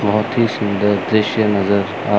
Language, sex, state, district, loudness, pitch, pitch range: Hindi, male, Chandigarh, Chandigarh, -17 LUFS, 105 Hz, 100-110 Hz